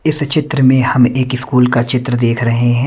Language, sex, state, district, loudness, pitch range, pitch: Hindi, male, Himachal Pradesh, Shimla, -13 LUFS, 120-135 Hz, 125 Hz